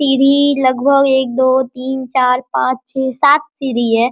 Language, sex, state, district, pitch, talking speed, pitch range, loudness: Hindi, male, Bihar, Araria, 265 Hz, 160 wpm, 255-275 Hz, -14 LUFS